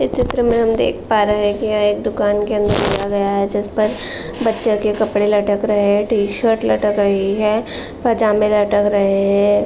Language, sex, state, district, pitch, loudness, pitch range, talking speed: Hindi, female, Uttar Pradesh, Jalaun, 210 Hz, -17 LUFS, 205-215 Hz, 205 wpm